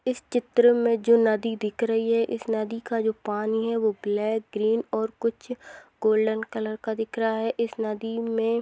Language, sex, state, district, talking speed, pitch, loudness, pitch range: Hindi, female, Rajasthan, Churu, 195 wpm, 225 Hz, -25 LUFS, 220-230 Hz